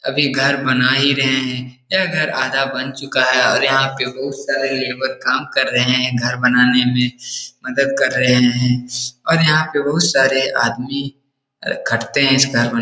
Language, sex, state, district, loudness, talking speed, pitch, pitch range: Hindi, male, Bihar, Jahanabad, -16 LUFS, 200 wpm, 130 Hz, 125-140 Hz